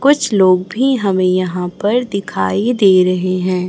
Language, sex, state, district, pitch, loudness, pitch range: Hindi, male, Chhattisgarh, Raipur, 185 Hz, -14 LUFS, 185-215 Hz